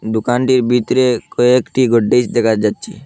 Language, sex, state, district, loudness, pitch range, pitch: Bengali, male, Assam, Hailakandi, -14 LUFS, 115-125 Hz, 120 Hz